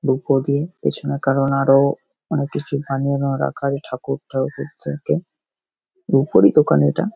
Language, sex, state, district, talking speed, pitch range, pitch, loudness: Bengali, male, West Bengal, Paschim Medinipur, 125 wpm, 130-140 Hz, 135 Hz, -19 LUFS